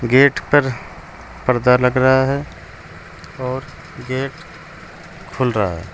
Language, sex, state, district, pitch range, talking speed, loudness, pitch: Hindi, male, Uttar Pradesh, Saharanpur, 120-135 Hz, 110 wpm, -18 LUFS, 130 Hz